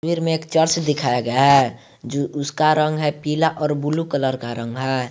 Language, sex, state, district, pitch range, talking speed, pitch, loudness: Hindi, male, Jharkhand, Garhwa, 130-155 Hz, 185 wpm, 145 Hz, -20 LUFS